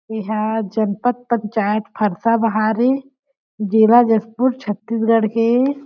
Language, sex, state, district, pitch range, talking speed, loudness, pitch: Chhattisgarhi, female, Chhattisgarh, Jashpur, 215-240 Hz, 90 wpm, -18 LUFS, 225 Hz